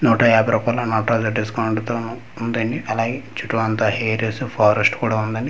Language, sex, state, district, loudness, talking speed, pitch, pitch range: Telugu, male, Andhra Pradesh, Manyam, -20 LUFS, 165 wpm, 115 Hz, 110-120 Hz